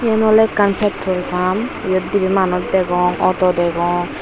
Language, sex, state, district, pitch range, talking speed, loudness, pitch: Chakma, female, Tripura, Unakoti, 180-205 Hz, 155 wpm, -16 LUFS, 185 Hz